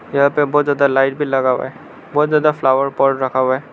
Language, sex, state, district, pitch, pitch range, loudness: Hindi, male, Arunachal Pradesh, Lower Dibang Valley, 140 Hz, 135-145 Hz, -16 LUFS